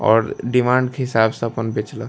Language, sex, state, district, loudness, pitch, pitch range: Maithili, male, Bihar, Darbhanga, -19 LUFS, 115 Hz, 110-125 Hz